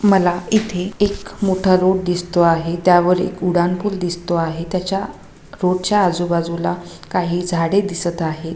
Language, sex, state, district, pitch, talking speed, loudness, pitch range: Marathi, female, Maharashtra, Chandrapur, 180 Hz, 145 wpm, -18 LUFS, 170-195 Hz